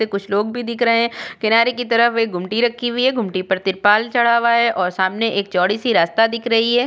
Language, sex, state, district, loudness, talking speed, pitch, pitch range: Hindi, female, Uttar Pradesh, Budaun, -17 LUFS, 260 wpm, 230 Hz, 200-235 Hz